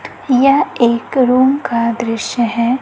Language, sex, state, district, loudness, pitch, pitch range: Hindi, female, Chhattisgarh, Raipur, -14 LUFS, 240 Hz, 235-260 Hz